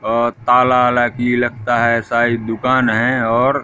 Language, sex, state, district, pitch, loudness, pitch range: Hindi, male, Madhya Pradesh, Katni, 120 Hz, -15 LUFS, 115-125 Hz